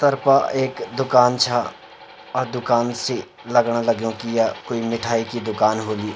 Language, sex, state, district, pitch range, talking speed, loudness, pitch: Garhwali, male, Uttarakhand, Uttarkashi, 115-125 Hz, 155 wpm, -20 LUFS, 120 Hz